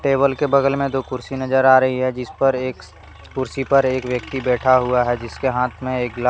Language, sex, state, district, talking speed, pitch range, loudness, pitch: Hindi, male, Jharkhand, Deoghar, 230 wpm, 125-135 Hz, -19 LUFS, 130 Hz